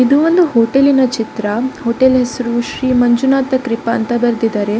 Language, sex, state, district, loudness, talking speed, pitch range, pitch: Kannada, female, Karnataka, Dakshina Kannada, -14 LUFS, 160 wpm, 230-265 Hz, 245 Hz